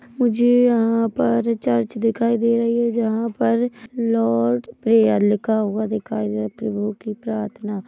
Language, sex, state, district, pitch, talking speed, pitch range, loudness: Hindi, male, Chhattisgarh, Rajnandgaon, 220 Hz, 150 wpm, 205-230 Hz, -20 LUFS